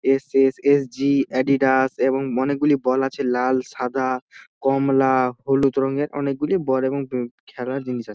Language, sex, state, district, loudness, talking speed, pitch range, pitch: Bengali, male, West Bengal, Dakshin Dinajpur, -21 LUFS, 140 wpm, 130-140 Hz, 135 Hz